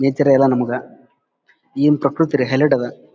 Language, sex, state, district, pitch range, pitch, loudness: Kannada, male, Karnataka, Bellary, 135-145 Hz, 140 Hz, -17 LUFS